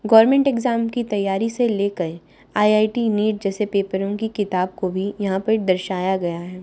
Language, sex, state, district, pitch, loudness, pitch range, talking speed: Hindi, female, Haryana, Charkhi Dadri, 205 Hz, -20 LUFS, 190-220 Hz, 170 wpm